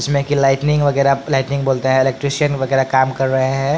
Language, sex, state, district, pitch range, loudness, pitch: Hindi, male, Bihar, Patna, 135-140 Hz, -16 LUFS, 135 Hz